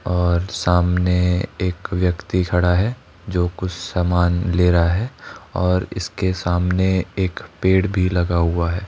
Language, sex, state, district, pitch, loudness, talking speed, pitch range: Hindi, male, Rajasthan, Jaipur, 90 Hz, -20 LUFS, 140 wpm, 90-95 Hz